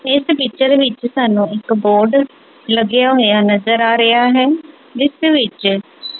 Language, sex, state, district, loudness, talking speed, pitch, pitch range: Punjabi, female, Punjab, Kapurthala, -14 LUFS, 135 wpm, 250 Hz, 220-280 Hz